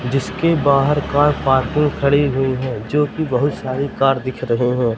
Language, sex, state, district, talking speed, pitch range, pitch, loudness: Hindi, male, Madhya Pradesh, Katni, 180 wpm, 130-145 Hz, 135 Hz, -18 LUFS